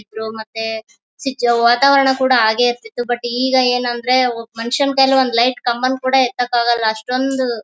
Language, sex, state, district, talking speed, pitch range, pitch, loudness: Kannada, female, Karnataka, Bellary, 150 wpm, 230-260 Hz, 245 Hz, -16 LUFS